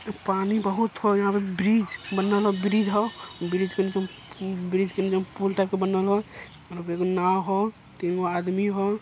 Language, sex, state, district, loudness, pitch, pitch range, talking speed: Hindi, male, Bihar, Jamui, -25 LUFS, 195 Hz, 185-205 Hz, 185 wpm